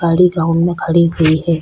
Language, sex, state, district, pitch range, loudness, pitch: Hindi, female, Chhattisgarh, Korba, 165-170 Hz, -13 LUFS, 170 Hz